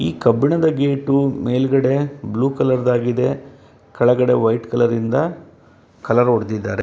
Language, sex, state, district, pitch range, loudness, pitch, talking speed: Kannada, male, Karnataka, Bellary, 115-135 Hz, -18 LUFS, 125 Hz, 115 wpm